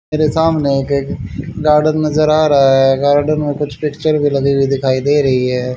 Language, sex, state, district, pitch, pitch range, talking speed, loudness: Hindi, male, Haryana, Charkhi Dadri, 145 Hz, 135-155 Hz, 200 wpm, -14 LUFS